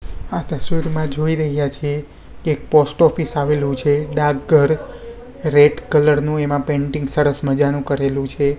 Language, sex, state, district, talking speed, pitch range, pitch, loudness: Gujarati, male, Gujarat, Gandhinagar, 155 wpm, 140-155 Hz, 150 Hz, -18 LUFS